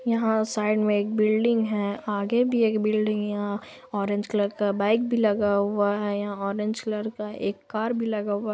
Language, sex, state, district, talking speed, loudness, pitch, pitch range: Hindi, female, Bihar, Purnia, 205 wpm, -25 LUFS, 210 Hz, 205-220 Hz